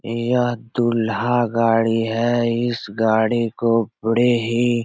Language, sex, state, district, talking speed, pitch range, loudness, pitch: Hindi, male, Bihar, Supaul, 125 wpm, 115-120 Hz, -19 LUFS, 115 Hz